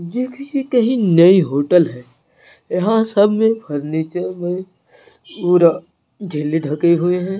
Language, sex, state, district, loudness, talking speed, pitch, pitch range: Hindi, male, Chhattisgarh, Narayanpur, -16 LUFS, 120 wpm, 180 Hz, 165-225 Hz